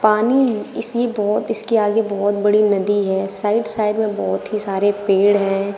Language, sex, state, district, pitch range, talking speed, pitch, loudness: Hindi, female, Uttar Pradesh, Shamli, 200-215 Hz, 175 wpm, 210 Hz, -18 LUFS